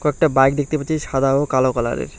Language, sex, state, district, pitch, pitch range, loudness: Bengali, male, West Bengal, Alipurduar, 135 Hz, 130-150 Hz, -18 LUFS